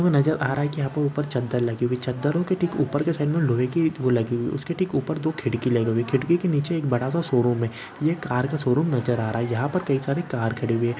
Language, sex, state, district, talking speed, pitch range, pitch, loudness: Hindi, male, Uttarakhand, Uttarkashi, 310 wpm, 120-155 Hz, 135 Hz, -24 LUFS